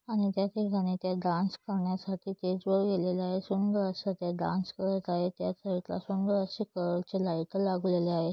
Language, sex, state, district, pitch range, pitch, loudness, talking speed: Marathi, female, Maharashtra, Chandrapur, 180-195 Hz, 190 Hz, -32 LUFS, 185 wpm